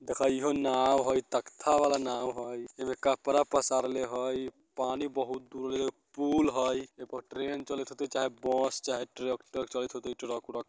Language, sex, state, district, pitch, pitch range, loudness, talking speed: Bajjika, male, Bihar, Vaishali, 130 Hz, 130-140 Hz, -31 LUFS, 175 wpm